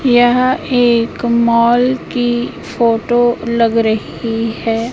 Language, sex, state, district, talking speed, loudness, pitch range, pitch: Hindi, female, Madhya Pradesh, Katni, 95 wpm, -14 LUFS, 230-245 Hz, 235 Hz